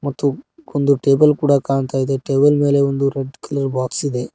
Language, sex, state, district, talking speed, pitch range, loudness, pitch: Kannada, male, Karnataka, Koppal, 165 wpm, 135-145 Hz, -17 LUFS, 140 Hz